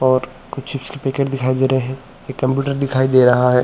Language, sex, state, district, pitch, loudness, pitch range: Hindi, male, Chhattisgarh, Bilaspur, 130 Hz, -18 LUFS, 130-135 Hz